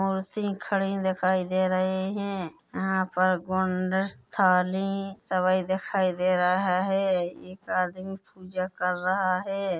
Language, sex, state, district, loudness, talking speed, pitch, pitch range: Hindi, female, Chhattisgarh, Bilaspur, -27 LUFS, 120 wpm, 185 Hz, 185-195 Hz